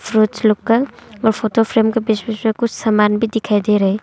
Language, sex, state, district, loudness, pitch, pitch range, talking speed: Hindi, female, Arunachal Pradesh, Longding, -16 LUFS, 220 Hz, 215-225 Hz, 240 wpm